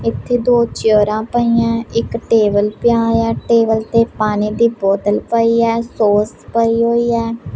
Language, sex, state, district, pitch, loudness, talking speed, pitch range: Punjabi, female, Punjab, Pathankot, 230 Hz, -15 LUFS, 150 wpm, 210-230 Hz